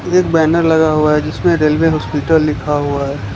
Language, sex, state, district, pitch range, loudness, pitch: Hindi, male, Gujarat, Valsad, 145-165 Hz, -14 LUFS, 155 Hz